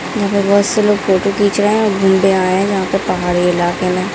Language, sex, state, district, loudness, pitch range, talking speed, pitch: Hindi, female, Bihar, Darbhanga, -14 LUFS, 185-205 Hz, 245 wpm, 195 Hz